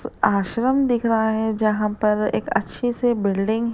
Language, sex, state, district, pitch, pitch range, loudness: Hindi, female, Uttar Pradesh, Lalitpur, 220 Hz, 210-240 Hz, -21 LUFS